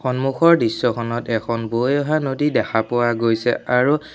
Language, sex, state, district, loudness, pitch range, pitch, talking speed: Assamese, male, Assam, Sonitpur, -19 LUFS, 115-140 Hz, 125 Hz, 145 wpm